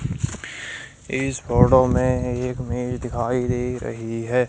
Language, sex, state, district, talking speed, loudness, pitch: Hindi, female, Haryana, Jhajjar, 120 wpm, -22 LUFS, 125 Hz